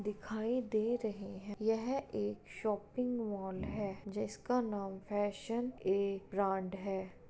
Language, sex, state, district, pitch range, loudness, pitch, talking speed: Hindi, female, Uttar Pradesh, Jalaun, 195-225 Hz, -38 LUFS, 205 Hz, 125 wpm